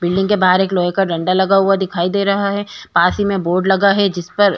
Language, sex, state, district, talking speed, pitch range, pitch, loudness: Hindi, female, Uttar Pradesh, Jyotiba Phule Nagar, 275 wpm, 180-200 Hz, 190 Hz, -15 LUFS